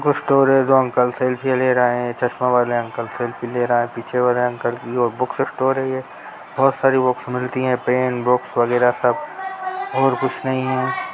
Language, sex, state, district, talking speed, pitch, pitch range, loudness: Hindi, male, Bihar, Jamui, 190 wpm, 125 Hz, 120-135 Hz, -19 LUFS